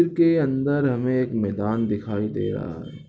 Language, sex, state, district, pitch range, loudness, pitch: Hindi, male, Chhattisgarh, Balrampur, 105-145 Hz, -23 LUFS, 125 Hz